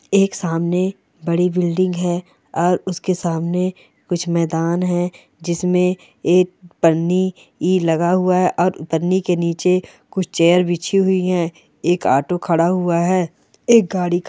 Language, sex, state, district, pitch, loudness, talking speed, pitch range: Hindi, female, Rajasthan, Churu, 180 Hz, -18 LUFS, 145 wpm, 170-185 Hz